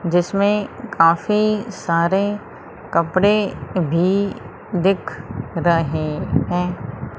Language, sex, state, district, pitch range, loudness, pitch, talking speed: Hindi, female, Madhya Pradesh, Umaria, 165-200 Hz, -19 LUFS, 180 Hz, 65 wpm